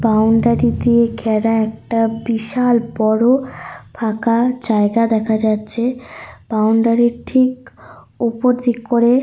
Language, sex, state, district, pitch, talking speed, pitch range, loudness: Bengali, female, Jharkhand, Sahebganj, 230 Hz, 70 wpm, 220-240 Hz, -16 LUFS